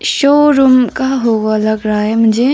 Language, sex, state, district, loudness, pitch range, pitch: Hindi, female, Arunachal Pradesh, Papum Pare, -12 LUFS, 215-265 Hz, 235 Hz